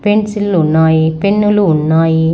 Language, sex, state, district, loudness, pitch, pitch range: Telugu, male, Andhra Pradesh, Guntur, -12 LUFS, 165 Hz, 160-205 Hz